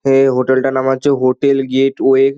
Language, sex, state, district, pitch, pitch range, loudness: Bengali, male, West Bengal, Dakshin Dinajpur, 135 Hz, 130-135 Hz, -14 LUFS